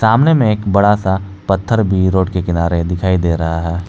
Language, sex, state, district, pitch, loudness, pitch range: Hindi, male, Jharkhand, Palamu, 95 Hz, -15 LUFS, 90-105 Hz